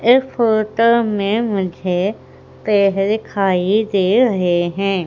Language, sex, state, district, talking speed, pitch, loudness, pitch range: Hindi, female, Madhya Pradesh, Umaria, 105 wpm, 200 Hz, -16 LUFS, 190-225 Hz